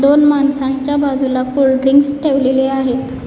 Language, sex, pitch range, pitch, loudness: Marathi, female, 265-285 Hz, 270 Hz, -14 LUFS